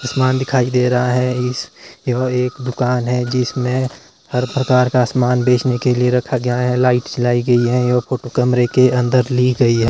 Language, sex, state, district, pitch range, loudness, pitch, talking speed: Hindi, male, Himachal Pradesh, Shimla, 125-130 Hz, -16 LUFS, 125 Hz, 200 wpm